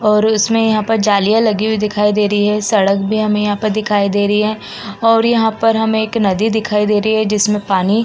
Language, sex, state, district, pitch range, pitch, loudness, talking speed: Hindi, female, Uttar Pradesh, Jalaun, 205-220 Hz, 210 Hz, -14 LUFS, 245 wpm